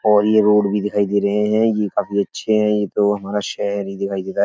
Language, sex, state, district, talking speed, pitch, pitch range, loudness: Hindi, male, Uttar Pradesh, Etah, 285 wpm, 105 Hz, 100-105 Hz, -18 LUFS